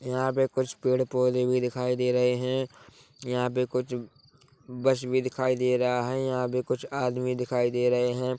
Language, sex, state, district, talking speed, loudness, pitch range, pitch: Hindi, male, Chhattisgarh, Korba, 185 wpm, -27 LUFS, 125-130 Hz, 125 Hz